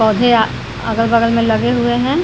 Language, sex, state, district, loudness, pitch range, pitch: Hindi, female, Bihar, Vaishali, -14 LUFS, 225-240 Hz, 230 Hz